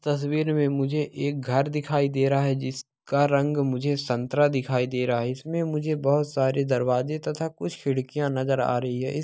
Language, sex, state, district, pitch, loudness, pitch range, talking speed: Hindi, male, Bihar, Araria, 140 Hz, -25 LUFS, 130-145 Hz, 200 wpm